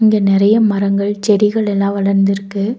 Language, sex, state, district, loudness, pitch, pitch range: Tamil, female, Tamil Nadu, Nilgiris, -14 LUFS, 200 Hz, 200-210 Hz